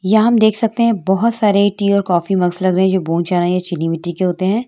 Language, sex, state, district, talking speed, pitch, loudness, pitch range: Hindi, female, Uttar Pradesh, Etah, 305 wpm, 190 Hz, -15 LUFS, 180-215 Hz